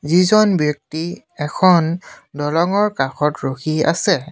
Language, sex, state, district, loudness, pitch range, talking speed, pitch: Assamese, male, Assam, Sonitpur, -17 LUFS, 150-180 Hz, 95 wpm, 160 Hz